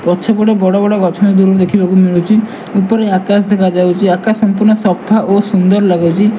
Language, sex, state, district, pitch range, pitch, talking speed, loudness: Odia, male, Odisha, Malkangiri, 185-210 Hz, 200 Hz, 150 wpm, -11 LUFS